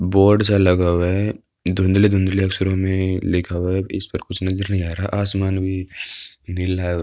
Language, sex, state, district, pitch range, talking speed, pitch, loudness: Hindi, male, Uttar Pradesh, Budaun, 90-95 Hz, 205 wpm, 95 Hz, -20 LUFS